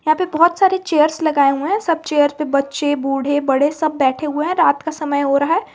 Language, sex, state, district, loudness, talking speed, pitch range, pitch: Hindi, female, Jharkhand, Garhwa, -17 LUFS, 250 wpm, 285-320 Hz, 300 Hz